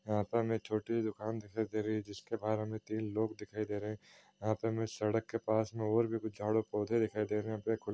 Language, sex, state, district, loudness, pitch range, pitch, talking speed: Hindi, male, Bihar, Madhepura, -36 LUFS, 105-110 Hz, 110 Hz, 270 wpm